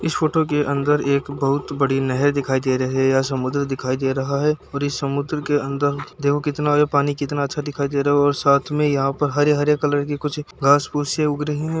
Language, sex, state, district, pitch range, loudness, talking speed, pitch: Hindi, male, Bihar, Saran, 140-145 Hz, -20 LUFS, 230 wpm, 145 Hz